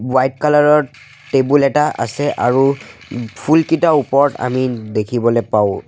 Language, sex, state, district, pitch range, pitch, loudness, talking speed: Assamese, male, Assam, Sonitpur, 120-150 Hz, 135 Hz, -15 LUFS, 120 wpm